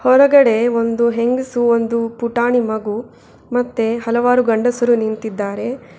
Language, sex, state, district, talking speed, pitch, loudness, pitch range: Kannada, female, Karnataka, Bangalore, 100 wpm, 235 Hz, -16 LUFS, 230-245 Hz